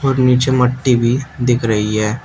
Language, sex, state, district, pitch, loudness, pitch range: Hindi, male, Uttar Pradesh, Shamli, 125 Hz, -15 LUFS, 115-130 Hz